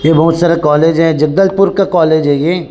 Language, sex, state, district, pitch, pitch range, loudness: Chhattisgarhi, male, Chhattisgarh, Rajnandgaon, 165 Hz, 155-175 Hz, -11 LUFS